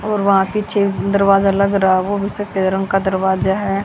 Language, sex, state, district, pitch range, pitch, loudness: Hindi, female, Haryana, Jhajjar, 190-200 Hz, 195 Hz, -16 LUFS